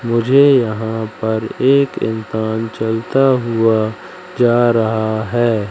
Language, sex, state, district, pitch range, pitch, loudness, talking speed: Hindi, male, Madhya Pradesh, Katni, 110-125 Hz, 115 Hz, -16 LUFS, 105 wpm